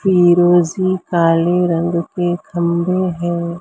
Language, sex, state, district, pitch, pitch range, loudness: Hindi, female, Maharashtra, Mumbai Suburban, 175 Hz, 170-180 Hz, -16 LUFS